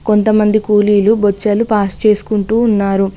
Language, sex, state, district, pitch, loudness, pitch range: Telugu, female, Telangana, Mahabubabad, 210 Hz, -13 LUFS, 205-215 Hz